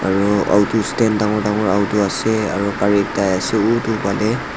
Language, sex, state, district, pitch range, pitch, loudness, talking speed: Nagamese, male, Nagaland, Dimapur, 100-110 Hz, 105 Hz, -17 LUFS, 170 wpm